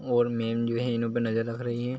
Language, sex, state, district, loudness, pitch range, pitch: Hindi, male, Chhattisgarh, Bilaspur, -28 LUFS, 115-120 Hz, 120 Hz